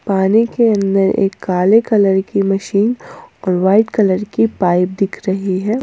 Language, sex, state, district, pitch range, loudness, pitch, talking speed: Hindi, female, Jharkhand, Ranchi, 190-225 Hz, -15 LUFS, 195 Hz, 165 wpm